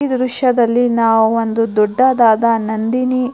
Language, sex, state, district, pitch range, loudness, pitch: Kannada, female, Karnataka, Mysore, 225-255 Hz, -14 LUFS, 235 Hz